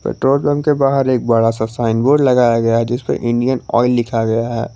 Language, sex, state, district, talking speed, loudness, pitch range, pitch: Hindi, male, Jharkhand, Garhwa, 240 wpm, -15 LUFS, 115-130 Hz, 120 Hz